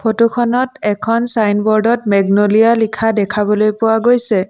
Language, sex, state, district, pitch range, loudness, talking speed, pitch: Assamese, female, Assam, Sonitpur, 210-230 Hz, -13 LUFS, 135 wpm, 220 Hz